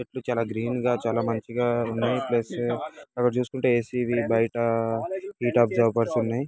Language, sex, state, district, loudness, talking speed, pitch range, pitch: Telugu, male, Andhra Pradesh, Guntur, -25 LUFS, 150 wpm, 115-125 Hz, 120 Hz